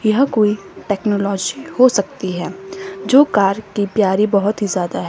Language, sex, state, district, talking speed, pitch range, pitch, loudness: Hindi, male, Himachal Pradesh, Shimla, 165 wpm, 195-215 Hz, 205 Hz, -17 LUFS